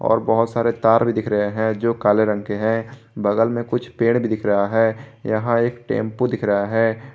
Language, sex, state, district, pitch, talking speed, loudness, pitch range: Hindi, male, Jharkhand, Garhwa, 115 Hz, 225 wpm, -20 LUFS, 110-115 Hz